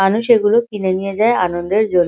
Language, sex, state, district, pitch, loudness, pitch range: Bengali, female, West Bengal, Kolkata, 205 Hz, -16 LUFS, 185-225 Hz